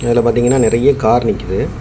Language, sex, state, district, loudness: Tamil, male, Tamil Nadu, Kanyakumari, -14 LUFS